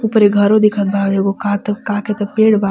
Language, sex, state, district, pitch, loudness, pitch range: Bhojpuri, female, Jharkhand, Palamu, 205 Hz, -15 LUFS, 200-210 Hz